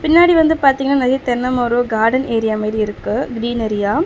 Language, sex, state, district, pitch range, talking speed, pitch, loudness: Tamil, female, Tamil Nadu, Chennai, 225-275 Hz, 180 wpm, 245 Hz, -16 LUFS